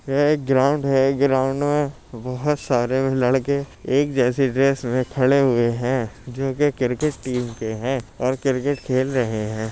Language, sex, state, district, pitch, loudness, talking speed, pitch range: Hindi, male, Uttar Pradesh, Jyotiba Phule Nagar, 130 Hz, -21 LUFS, 160 wpm, 125-140 Hz